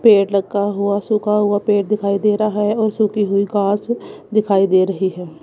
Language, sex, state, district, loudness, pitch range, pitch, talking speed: Hindi, female, Punjab, Kapurthala, -17 LUFS, 200-210 Hz, 205 Hz, 200 wpm